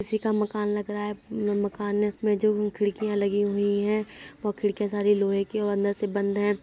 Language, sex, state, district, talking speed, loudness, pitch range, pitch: Hindi, female, Uttar Pradesh, Budaun, 225 wpm, -26 LUFS, 205-210 Hz, 205 Hz